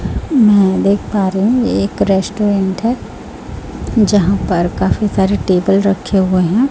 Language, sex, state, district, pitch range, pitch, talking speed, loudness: Hindi, female, Chhattisgarh, Raipur, 190-210 Hz, 195 Hz, 135 wpm, -14 LUFS